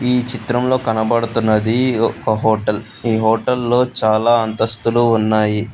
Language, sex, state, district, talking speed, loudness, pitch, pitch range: Telugu, male, Telangana, Hyderabad, 105 wpm, -16 LUFS, 115 Hz, 110-120 Hz